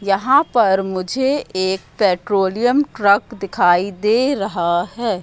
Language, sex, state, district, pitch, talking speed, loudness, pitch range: Hindi, female, Madhya Pradesh, Katni, 200 Hz, 115 wpm, -17 LUFS, 185-240 Hz